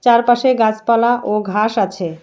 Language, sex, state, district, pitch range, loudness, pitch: Bengali, female, West Bengal, Alipurduar, 210-240 Hz, -15 LUFS, 220 Hz